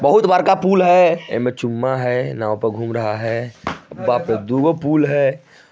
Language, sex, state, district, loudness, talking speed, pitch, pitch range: Bajjika, female, Bihar, Vaishali, -17 LUFS, 170 wpm, 130 Hz, 115-170 Hz